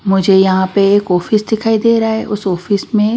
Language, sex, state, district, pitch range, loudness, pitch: Hindi, female, Maharashtra, Washim, 190-220 Hz, -13 LUFS, 205 Hz